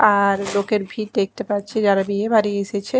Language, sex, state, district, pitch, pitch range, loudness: Bengali, female, Chhattisgarh, Raipur, 205 Hz, 200-215 Hz, -20 LUFS